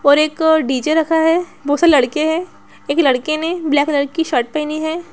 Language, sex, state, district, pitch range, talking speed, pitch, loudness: Hindi, female, Bihar, Araria, 285-320 Hz, 210 wpm, 310 Hz, -16 LUFS